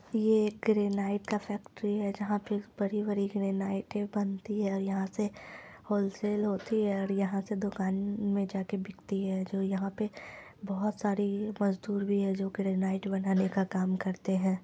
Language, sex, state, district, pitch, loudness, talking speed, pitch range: Hindi, female, Bihar, Lakhisarai, 200 Hz, -32 LUFS, 175 wpm, 195-205 Hz